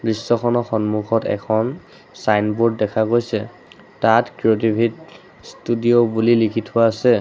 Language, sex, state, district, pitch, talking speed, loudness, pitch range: Assamese, male, Assam, Sonitpur, 115 Hz, 110 wpm, -18 LUFS, 110-120 Hz